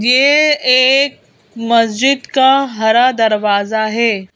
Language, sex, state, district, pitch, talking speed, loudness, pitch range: Hindi, female, Madhya Pradesh, Bhopal, 235 Hz, 95 wpm, -12 LUFS, 220-270 Hz